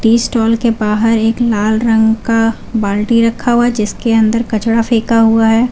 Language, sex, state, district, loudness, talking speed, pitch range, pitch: Hindi, female, Jharkhand, Garhwa, -12 LUFS, 180 wpm, 220-230 Hz, 225 Hz